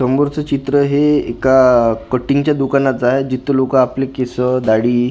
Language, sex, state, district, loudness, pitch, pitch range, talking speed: Marathi, male, Maharashtra, Gondia, -15 LUFS, 130 Hz, 125-140 Hz, 140 wpm